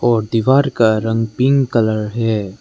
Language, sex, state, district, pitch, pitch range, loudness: Hindi, male, Arunachal Pradesh, Lower Dibang Valley, 115 Hz, 110-130 Hz, -16 LUFS